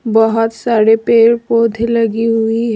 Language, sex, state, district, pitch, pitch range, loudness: Hindi, female, Jharkhand, Deoghar, 230 Hz, 225-230 Hz, -13 LUFS